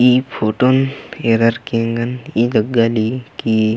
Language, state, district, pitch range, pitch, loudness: Kurukh, Chhattisgarh, Jashpur, 115-125 Hz, 115 Hz, -17 LUFS